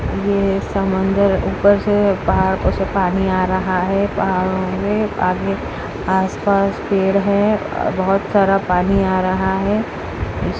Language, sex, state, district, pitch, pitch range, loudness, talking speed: Hindi, female, Uttarakhand, Uttarkashi, 195 Hz, 190-200 Hz, -17 LUFS, 145 wpm